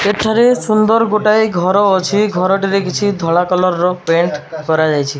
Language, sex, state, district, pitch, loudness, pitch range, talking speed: Odia, male, Odisha, Malkangiri, 190 Hz, -14 LUFS, 175-210 Hz, 140 wpm